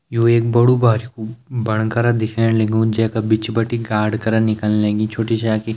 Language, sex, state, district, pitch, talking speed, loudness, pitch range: Garhwali, male, Uttarakhand, Uttarkashi, 110 Hz, 200 wpm, -17 LUFS, 110-115 Hz